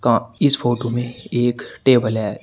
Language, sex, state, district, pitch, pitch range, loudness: Hindi, male, Uttar Pradesh, Shamli, 120 Hz, 115-125 Hz, -19 LUFS